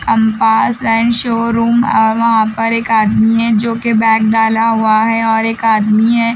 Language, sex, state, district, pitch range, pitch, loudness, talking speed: Hindi, female, Bihar, Patna, 220-230 Hz, 225 Hz, -12 LUFS, 180 wpm